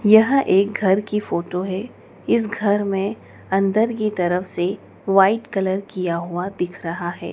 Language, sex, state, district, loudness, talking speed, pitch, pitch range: Hindi, female, Madhya Pradesh, Dhar, -21 LUFS, 165 wpm, 195 Hz, 180-210 Hz